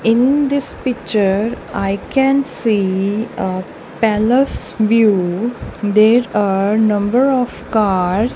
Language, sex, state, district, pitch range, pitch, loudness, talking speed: English, female, Punjab, Kapurthala, 200-245 Hz, 215 Hz, -16 LUFS, 100 wpm